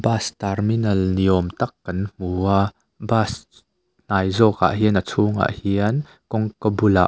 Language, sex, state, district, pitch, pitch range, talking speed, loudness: Mizo, male, Mizoram, Aizawl, 105 Hz, 95-110 Hz, 135 wpm, -21 LUFS